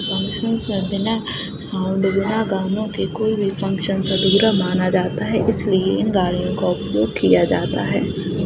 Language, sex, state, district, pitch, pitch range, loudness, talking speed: Hindi, female, Uttar Pradesh, Jalaun, 195 Hz, 190-215 Hz, -19 LUFS, 135 wpm